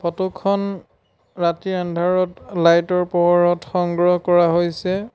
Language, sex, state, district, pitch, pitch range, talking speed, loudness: Assamese, male, Assam, Sonitpur, 175 Hz, 175-185 Hz, 115 wpm, -19 LUFS